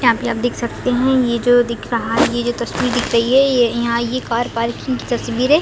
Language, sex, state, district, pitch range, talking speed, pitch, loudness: Hindi, female, Chhattisgarh, Raigarh, 235-250 Hz, 255 wpm, 240 Hz, -17 LUFS